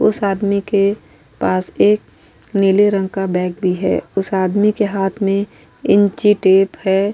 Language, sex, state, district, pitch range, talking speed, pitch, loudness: Hindi, female, Uttar Pradesh, Muzaffarnagar, 190-205 Hz, 150 wpm, 195 Hz, -16 LUFS